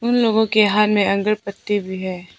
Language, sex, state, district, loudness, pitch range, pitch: Hindi, female, Arunachal Pradesh, Papum Pare, -18 LUFS, 195-215 Hz, 210 Hz